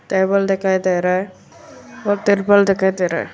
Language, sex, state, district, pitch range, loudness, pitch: Hindi, female, Arunachal Pradesh, Lower Dibang Valley, 185-200 Hz, -17 LUFS, 190 Hz